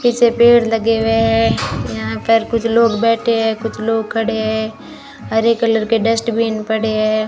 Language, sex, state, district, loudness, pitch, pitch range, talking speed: Hindi, female, Rajasthan, Bikaner, -15 LUFS, 225 Hz, 215-230 Hz, 175 wpm